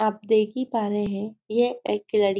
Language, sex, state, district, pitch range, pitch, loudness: Hindi, female, Maharashtra, Nagpur, 205-230 Hz, 215 Hz, -25 LUFS